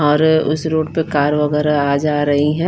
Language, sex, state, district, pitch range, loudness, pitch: Hindi, female, Bihar, Patna, 145-160 Hz, -16 LUFS, 150 Hz